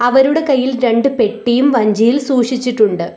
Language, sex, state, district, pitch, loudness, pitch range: Malayalam, female, Kerala, Kollam, 245 Hz, -13 LUFS, 230-265 Hz